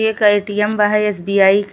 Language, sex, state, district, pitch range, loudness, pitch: Bhojpuri, female, Uttar Pradesh, Ghazipur, 200-210 Hz, -15 LUFS, 210 Hz